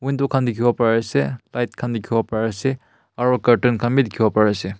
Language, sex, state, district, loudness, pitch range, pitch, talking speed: Nagamese, male, Nagaland, Kohima, -20 LUFS, 110-125 Hz, 120 Hz, 240 wpm